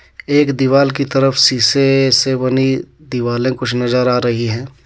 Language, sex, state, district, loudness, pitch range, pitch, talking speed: Hindi, male, Jharkhand, Deoghar, -14 LUFS, 125-135 Hz, 130 Hz, 160 wpm